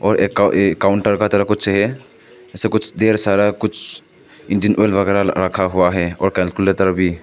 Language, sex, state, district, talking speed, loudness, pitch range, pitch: Hindi, male, Arunachal Pradesh, Papum Pare, 165 wpm, -16 LUFS, 95-105 Hz, 100 Hz